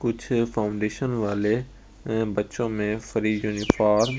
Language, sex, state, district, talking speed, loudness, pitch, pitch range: Hindi, male, Delhi, New Delhi, 115 wpm, -25 LUFS, 110 Hz, 105-115 Hz